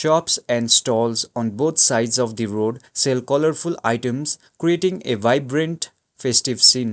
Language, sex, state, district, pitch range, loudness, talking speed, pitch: English, male, Sikkim, Gangtok, 115-155 Hz, -19 LUFS, 145 wpm, 125 Hz